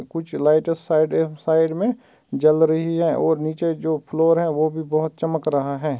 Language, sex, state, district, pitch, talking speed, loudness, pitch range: Hindi, male, Uttar Pradesh, Ghazipur, 160 Hz, 210 wpm, -20 LUFS, 155-165 Hz